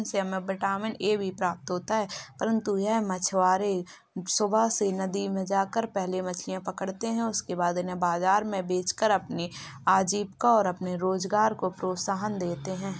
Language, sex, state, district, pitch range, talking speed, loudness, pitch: Hindi, male, Uttar Pradesh, Jalaun, 185-210 Hz, 160 wpm, -28 LUFS, 190 Hz